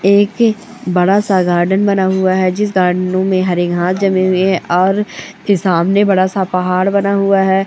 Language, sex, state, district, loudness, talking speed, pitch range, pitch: Hindi, female, West Bengal, Purulia, -13 LUFS, 195 wpm, 185-200 Hz, 190 Hz